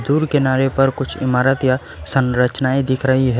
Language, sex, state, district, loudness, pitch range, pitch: Hindi, male, West Bengal, Alipurduar, -17 LUFS, 130-135 Hz, 130 Hz